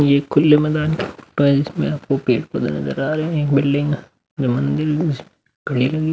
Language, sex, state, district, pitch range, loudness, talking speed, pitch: Hindi, male, Bihar, Vaishali, 140-150 Hz, -19 LUFS, 135 wpm, 145 Hz